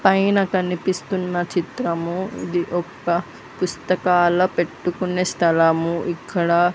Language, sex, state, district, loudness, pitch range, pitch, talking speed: Telugu, female, Andhra Pradesh, Sri Satya Sai, -21 LUFS, 170-185 Hz, 175 Hz, 80 wpm